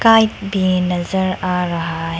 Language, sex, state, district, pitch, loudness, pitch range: Hindi, female, Arunachal Pradesh, Lower Dibang Valley, 185 Hz, -18 LUFS, 175-190 Hz